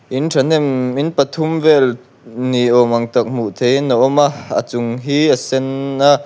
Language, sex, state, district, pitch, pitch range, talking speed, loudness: Mizo, male, Mizoram, Aizawl, 135 Hz, 120-145 Hz, 200 wpm, -15 LUFS